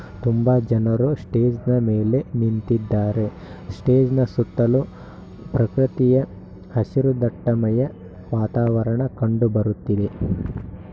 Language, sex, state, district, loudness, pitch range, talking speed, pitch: Kannada, male, Karnataka, Shimoga, -21 LUFS, 105-125 Hz, 65 wpm, 115 Hz